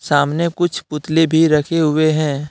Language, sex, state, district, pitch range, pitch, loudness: Hindi, male, Jharkhand, Deoghar, 150-165 Hz, 155 Hz, -16 LUFS